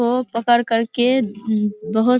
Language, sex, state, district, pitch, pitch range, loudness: Hindi, female, Bihar, Araria, 230 Hz, 220-245 Hz, -19 LUFS